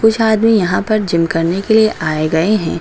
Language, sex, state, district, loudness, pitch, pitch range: Hindi, female, Uttar Pradesh, Lucknow, -14 LUFS, 205 Hz, 165-220 Hz